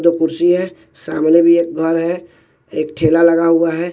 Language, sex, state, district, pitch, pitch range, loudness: Hindi, male, Bihar, West Champaran, 165 Hz, 160-170 Hz, -14 LUFS